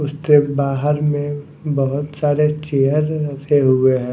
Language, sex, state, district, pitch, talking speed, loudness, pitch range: Hindi, male, Odisha, Nuapada, 145 Hz, 130 wpm, -17 LUFS, 140-150 Hz